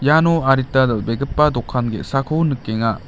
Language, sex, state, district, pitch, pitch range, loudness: Garo, male, Meghalaya, West Garo Hills, 130 Hz, 115-150 Hz, -18 LUFS